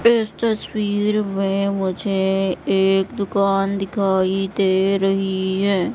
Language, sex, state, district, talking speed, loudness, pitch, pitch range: Hindi, female, Madhya Pradesh, Katni, 100 wpm, -20 LUFS, 195 Hz, 190-200 Hz